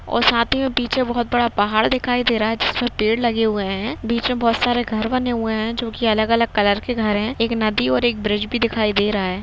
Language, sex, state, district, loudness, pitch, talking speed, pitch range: Hindi, female, Uttarakhand, Uttarkashi, -19 LUFS, 230 Hz, 275 wpm, 215-240 Hz